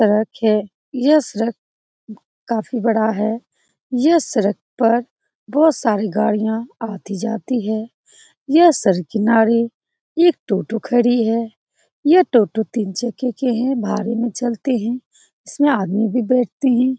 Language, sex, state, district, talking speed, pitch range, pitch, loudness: Hindi, female, Bihar, Saran, 125 wpm, 220-255 Hz, 230 Hz, -18 LUFS